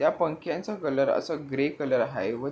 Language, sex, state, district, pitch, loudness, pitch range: Marathi, male, Maharashtra, Pune, 150 Hz, -28 LUFS, 140-170 Hz